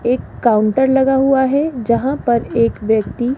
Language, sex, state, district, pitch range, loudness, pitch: Hindi, female, Rajasthan, Jaipur, 235-265 Hz, -15 LUFS, 245 Hz